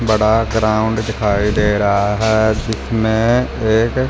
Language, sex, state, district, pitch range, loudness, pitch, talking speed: Hindi, male, Punjab, Fazilka, 105-110 Hz, -16 LUFS, 110 Hz, 115 wpm